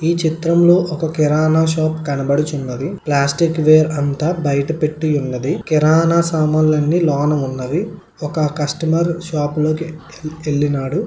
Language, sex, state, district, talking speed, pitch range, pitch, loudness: Telugu, male, Andhra Pradesh, Srikakulam, 115 wpm, 145-165 Hz, 155 Hz, -17 LUFS